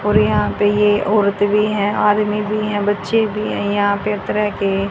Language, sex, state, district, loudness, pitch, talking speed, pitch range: Hindi, female, Haryana, Rohtak, -17 LUFS, 205 Hz, 220 wpm, 200-210 Hz